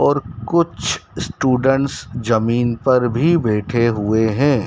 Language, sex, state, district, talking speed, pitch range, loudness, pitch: Hindi, male, Madhya Pradesh, Dhar, 115 wpm, 115-140 Hz, -18 LUFS, 120 Hz